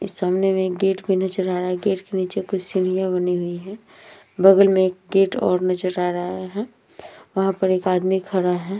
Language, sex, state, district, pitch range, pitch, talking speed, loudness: Hindi, female, Uttar Pradesh, Hamirpur, 185-195 Hz, 185 Hz, 220 wpm, -21 LUFS